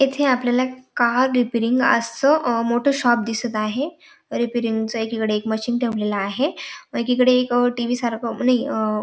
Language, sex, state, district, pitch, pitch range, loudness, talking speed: Marathi, female, Maharashtra, Dhule, 240 Hz, 230-255 Hz, -20 LUFS, 160 wpm